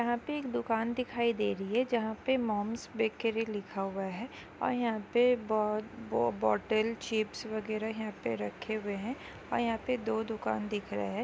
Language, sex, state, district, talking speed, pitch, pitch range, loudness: Hindi, female, Chhattisgarh, Jashpur, 190 wpm, 220 Hz, 205-235 Hz, -33 LUFS